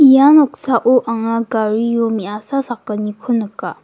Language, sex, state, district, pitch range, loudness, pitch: Garo, female, Meghalaya, West Garo Hills, 220-255 Hz, -15 LUFS, 230 Hz